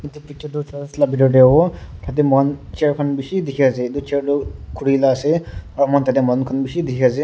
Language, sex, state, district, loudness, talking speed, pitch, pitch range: Nagamese, male, Nagaland, Dimapur, -18 LUFS, 240 wpm, 140 Hz, 130-145 Hz